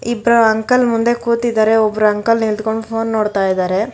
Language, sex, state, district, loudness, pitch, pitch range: Kannada, female, Karnataka, Bangalore, -15 LUFS, 225 Hz, 215-235 Hz